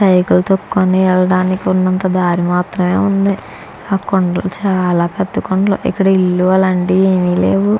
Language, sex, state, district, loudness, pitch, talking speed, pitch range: Telugu, female, Andhra Pradesh, Chittoor, -14 LUFS, 185 Hz, 115 wpm, 180-190 Hz